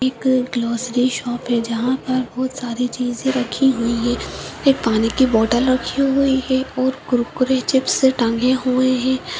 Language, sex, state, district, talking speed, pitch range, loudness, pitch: Hindi, female, Uttarakhand, Tehri Garhwal, 160 wpm, 240-260 Hz, -19 LUFS, 255 Hz